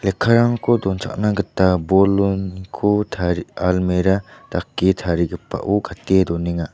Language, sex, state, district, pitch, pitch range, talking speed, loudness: Garo, male, Meghalaya, West Garo Hills, 95 Hz, 90-105 Hz, 70 wpm, -19 LUFS